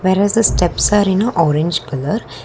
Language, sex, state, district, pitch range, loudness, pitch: English, female, Karnataka, Bangalore, 165-210 Hz, -15 LUFS, 190 Hz